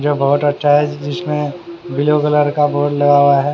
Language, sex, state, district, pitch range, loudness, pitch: Hindi, male, Haryana, Charkhi Dadri, 145-150 Hz, -15 LUFS, 145 Hz